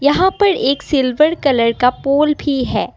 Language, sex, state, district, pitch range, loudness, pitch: Hindi, female, Assam, Kamrup Metropolitan, 260-305 Hz, -15 LUFS, 280 Hz